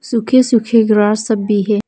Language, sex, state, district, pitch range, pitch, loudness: Hindi, female, Arunachal Pradesh, Papum Pare, 210-230 Hz, 215 Hz, -13 LUFS